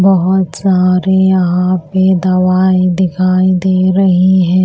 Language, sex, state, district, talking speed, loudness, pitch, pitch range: Hindi, female, Maharashtra, Washim, 115 wpm, -11 LUFS, 185 Hz, 185-190 Hz